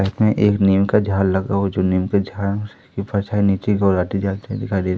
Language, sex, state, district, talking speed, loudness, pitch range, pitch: Hindi, male, Madhya Pradesh, Katni, 170 wpm, -19 LUFS, 95-105 Hz, 100 Hz